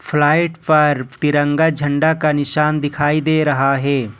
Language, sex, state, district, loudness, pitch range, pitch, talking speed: Hindi, male, Jharkhand, Ranchi, -16 LUFS, 145-155 Hz, 150 Hz, 145 wpm